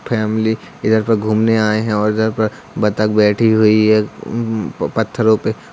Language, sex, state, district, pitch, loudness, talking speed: Hindi, male, Uttar Pradesh, Jalaun, 110 Hz, -16 LUFS, 155 wpm